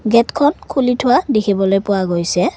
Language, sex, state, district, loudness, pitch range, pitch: Assamese, female, Assam, Kamrup Metropolitan, -15 LUFS, 195-250 Hz, 220 Hz